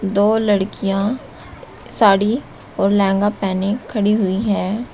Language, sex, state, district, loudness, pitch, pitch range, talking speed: Hindi, female, Uttar Pradesh, Shamli, -18 LUFS, 205 Hz, 195-215 Hz, 110 wpm